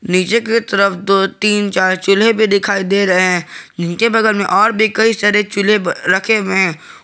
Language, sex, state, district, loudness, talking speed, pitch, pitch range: Hindi, male, Jharkhand, Garhwa, -13 LUFS, 195 wpm, 200 Hz, 190-220 Hz